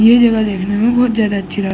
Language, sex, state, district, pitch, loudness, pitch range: Hindi, male, Uttar Pradesh, Ghazipur, 215 Hz, -14 LUFS, 200-230 Hz